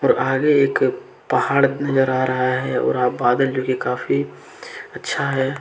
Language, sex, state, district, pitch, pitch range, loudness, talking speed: Hindi, male, Jharkhand, Deoghar, 130 Hz, 130-135 Hz, -19 LUFS, 160 wpm